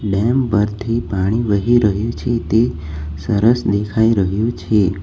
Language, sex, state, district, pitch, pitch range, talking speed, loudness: Gujarati, male, Gujarat, Valsad, 105 Hz, 100-115 Hz, 130 wpm, -17 LUFS